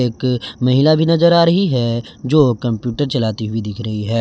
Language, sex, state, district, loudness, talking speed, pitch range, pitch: Hindi, male, Jharkhand, Garhwa, -16 LUFS, 200 wpm, 115-150 Hz, 125 Hz